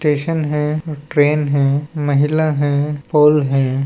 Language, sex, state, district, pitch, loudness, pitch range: Chhattisgarhi, male, Chhattisgarh, Balrampur, 150 Hz, -16 LUFS, 145-150 Hz